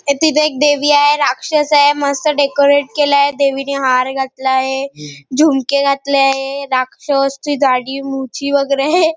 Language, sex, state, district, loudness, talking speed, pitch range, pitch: Marathi, female, Maharashtra, Nagpur, -14 LUFS, 150 wpm, 270-290 Hz, 280 Hz